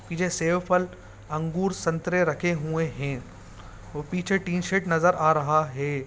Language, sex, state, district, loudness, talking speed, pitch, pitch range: Hindi, male, Bihar, Saran, -25 LUFS, 150 wpm, 160 Hz, 140-180 Hz